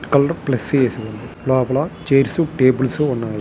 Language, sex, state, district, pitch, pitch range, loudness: Telugu, male, Andhra Pradesh, Guntur, 130 Hz, 125-140 Hz, -18 LUFS